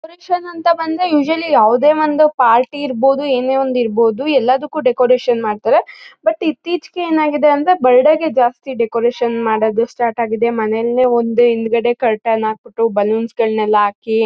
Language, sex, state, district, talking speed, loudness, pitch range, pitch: Kannada, female, Karnataka, Mysore, 135 wpm, -15 LUFS, 230-305 Hz, 250 Hz